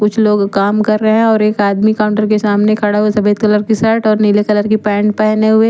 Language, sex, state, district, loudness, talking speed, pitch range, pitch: Hindi, female, Chandigarh, Chandigarh, -12 LUFS, 275 wpm, 210-215 Hz, 215 Hz